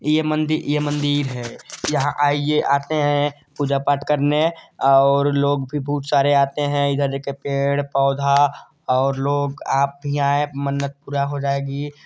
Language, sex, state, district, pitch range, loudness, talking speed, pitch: Hindi, male, Chhattisgarh, Sarguja, 140-145 Hz, -20 LUFS, 160 wpm, 145 Hz